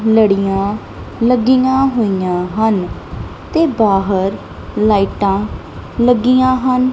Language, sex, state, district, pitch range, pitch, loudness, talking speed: Punjabi, female, Punjab, Kapurthala, 195-255 Hz, 220 Hz, -14 LUFS, 85 wpm